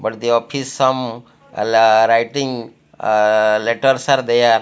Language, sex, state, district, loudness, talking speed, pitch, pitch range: English, male, Odisha, Malkangiri, -16 LUFS, 130 wpm, 115 Hz, 110-130 Hz